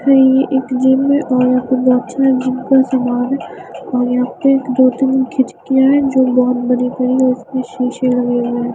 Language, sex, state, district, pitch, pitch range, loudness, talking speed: Hindi, female, Himachal Pradesh, Shimla, 255 Hz, 250-265 Hz, -14 LUFS, 215 wpm